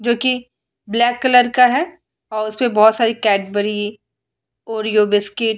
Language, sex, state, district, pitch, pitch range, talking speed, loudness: Hindi, female, Bihar, Vaishali, 225 Hz, 210-245 Hz, 160 wpm, -16 LUFS